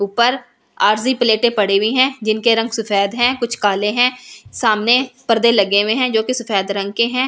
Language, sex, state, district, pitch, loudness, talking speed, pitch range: Hindi, female, Delhi, New Delhi, 230 Hz, -16 LUFS, 205 wpm, 210-245 Hz